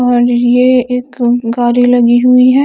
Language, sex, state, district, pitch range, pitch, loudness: Hindi, female, Chandigarh, Chandigarh, 240-250 Hz, 245 Hz, -10 LUFS